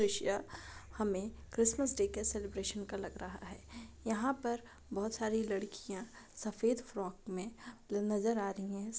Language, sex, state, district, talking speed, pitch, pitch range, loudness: Hindi, female, Chhattisgarh, Raigarh, 155 wpm, 210 Hz, 200-230 Hz, -38 LUFS